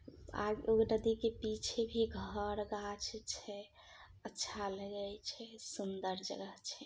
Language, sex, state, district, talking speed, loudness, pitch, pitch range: Maithili, female, Bihar, Samastipur, 130 wpm, -40 LUFS, 210 Hz, 205-225 Hz